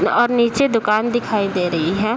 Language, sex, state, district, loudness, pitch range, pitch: Hindi, female, Bihar, Saharsa, -18 LUFS, 200-240 Hz, 220 Hz